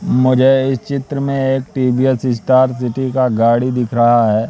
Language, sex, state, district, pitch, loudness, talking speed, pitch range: Hindi, male, Madhya Pradesh, Katni, 130 Hz, -15 LUFS, 175 wpm, 120-135 Hz